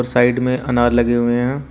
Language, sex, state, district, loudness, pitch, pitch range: Hindi, male, Uttar Pradesh, Shamli, -16 LUFS, 120 Hz, 120-125 Hz